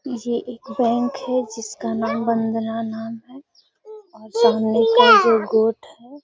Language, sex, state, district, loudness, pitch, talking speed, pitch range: Hindi, female, Bihar, Gaya, -19 LUFS, 230 Hz, 105 wpm, 225-255 Hz